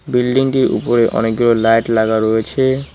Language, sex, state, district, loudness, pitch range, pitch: Bengali, male, West Bengal, Cooch Behar, -15 LUFS, 110-130 Hz, 115 Hz